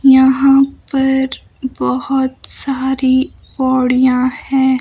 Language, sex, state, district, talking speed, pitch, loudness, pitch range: Hindi, female, Himachal Pradesh, Shimla, 75 wpm, 265 Hz, -14 LUFS, 260-270 Hz